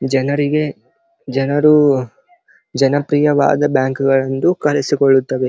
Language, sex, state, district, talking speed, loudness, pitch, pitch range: Kannada, male, Karnataka, Belgaum, 65 wpm, -15 LUFS, 140 Hz, 135-150 Hz